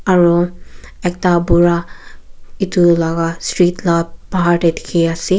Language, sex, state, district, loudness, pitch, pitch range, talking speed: Nagamese, female, Nagaland, Kohima, -15 LUFS, 170 Hz, 165-180 Hz, 120 wpm